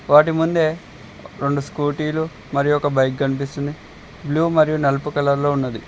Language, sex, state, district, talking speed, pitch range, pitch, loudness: Telugu, male, Telangana, Mahabubabad, 130 wpm, 140-155 Hz, 145 Hz, -20 LUFS